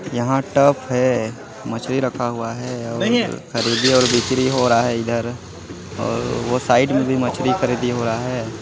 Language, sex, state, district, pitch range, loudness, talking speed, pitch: Hindi, male, Chhattisgarh, Jashpur, 115-130 Hz, -19 LUFS, 160 wpm, 120 Hz